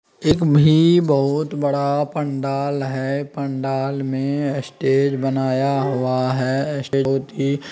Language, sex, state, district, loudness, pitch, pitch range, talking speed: Magahi, male, Bihar, Gaya, -20 LUFS, 140 Hz, 135-145 Hz, 100 wpm